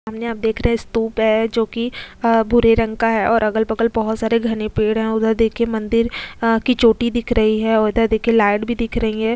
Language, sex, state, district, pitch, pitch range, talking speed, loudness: Hindi, female, Uttar Pradesh, Etah, 225 Hz, 220-230 Hz, 235 wpm, -18 LUFS